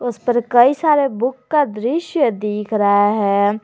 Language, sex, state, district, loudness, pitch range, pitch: Hindi, female, Jharkhand, Garhwa, -17 LUFS, 210-270 Hz, 240 Hz